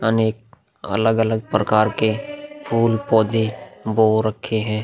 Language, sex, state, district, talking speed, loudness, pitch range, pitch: Hindi, male, Bihar, Vaishali, 100 wpm, -19 LUFS, 110-115 Hz, 110 Hz